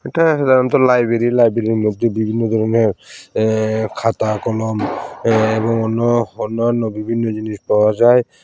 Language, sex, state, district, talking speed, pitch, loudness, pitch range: Bengali, male, Tripura, Unakoti, 105 wpm, 115 Hz, -16 LUFS, 110-120 Hz